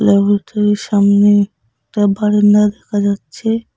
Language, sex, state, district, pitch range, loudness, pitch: Bengali, female, West Bengal, Cooch Behar, 200-210 Hz, -14 LUFS, 205 Hz